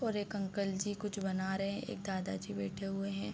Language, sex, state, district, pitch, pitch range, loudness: Hindi, female, Bihar, Sitamarhi, 195 Hz, 190-205 Hz, -38 LUFS